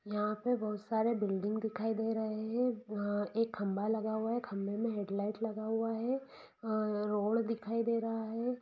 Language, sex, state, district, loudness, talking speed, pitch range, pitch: Hindi, female, Bihar, Saran, -35 LUFS, 175 wpm, 210-230 Hz, 220 Hz